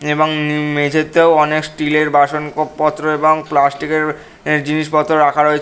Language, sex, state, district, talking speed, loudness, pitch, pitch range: Bengali, male, West Bengal, North 24 Parganas, 150 wpm, -15 LUFS, 150 Hz, 150-155 Hz